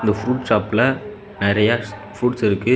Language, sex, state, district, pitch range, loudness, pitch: Tamil, male, Tamil Nadu, Namakkal, 105-125 Hz, -19 LUFS, 105 Hz